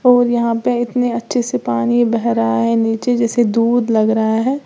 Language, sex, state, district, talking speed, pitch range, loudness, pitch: Hindi, female, Uttar Pradesh, Lalitpur, 205 wpm, 220-245 Hz, -16 LUFS, 235 Hz